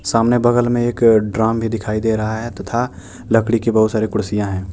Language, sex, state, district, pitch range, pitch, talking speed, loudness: Hindi, male, Jharkhand, Deoghar, 105-115 Hz, 110 Hz, 215 wpm, -17 LUFS